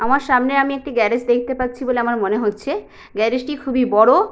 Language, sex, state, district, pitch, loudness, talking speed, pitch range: Bengali, female, West Bengal, Jalpaiguri, 250 Hz, -18 LUFS, 210 wpm, 230-275 Hz